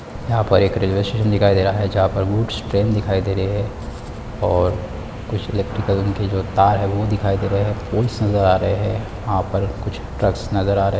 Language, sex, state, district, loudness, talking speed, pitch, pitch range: Hindi, male, Chhattisgarh, Korba, -19 LUFS, 230 wpm, 100 Hz, 95-105 Hz